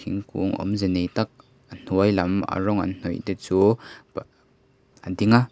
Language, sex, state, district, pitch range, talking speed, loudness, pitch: Mizo, male, Mizoram, Aizawl, 95-110 Hz, 165 wpm, -24 LUFS, 100 Hz